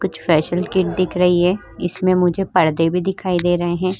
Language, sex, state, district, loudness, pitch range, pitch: Hindi, female, Uttar Pradesh, Budaun, -18 LUFS, 175-185 Hz, 180 Hz